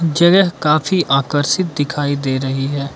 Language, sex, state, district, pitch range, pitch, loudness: Hindi, male, Arunachal Pradesh, Lower Dibang Valley, 140-170 Hz, 145 Hz, -16 LUFS